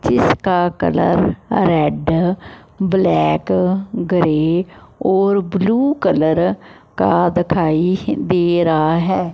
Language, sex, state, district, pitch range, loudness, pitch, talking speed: Hindi, male, Punjab, Fazilka, 165-190 Hz, -16 LUFS, 175 Hz, 85 wpm